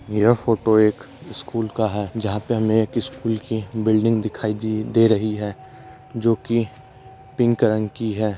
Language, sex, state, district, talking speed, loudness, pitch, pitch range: Hindi, male, Maharashtra, Dhule, 155 wpm, -21 LUFS, 110 Hz, 110-115 Hz